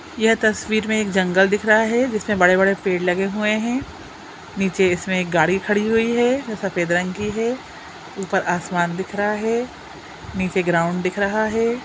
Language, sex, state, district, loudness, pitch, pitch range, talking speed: Hindi, female, Bihar, Jamui, -20 LUFS, 200 Hz, 185-220 Hz, 185 wpm